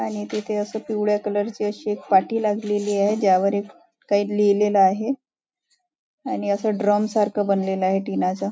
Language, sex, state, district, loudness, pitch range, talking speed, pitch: Marathi, female, Maharashtra, Nagpur, -22 LUFS, 200-215 Hz, 155 wpm, 205 Hz